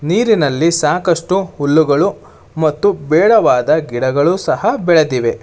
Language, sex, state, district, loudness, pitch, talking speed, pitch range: Kannada, male, Karnataka, Bangalore, -14 LUFS, 160 Hz, 90 wpm, 140-180 Hz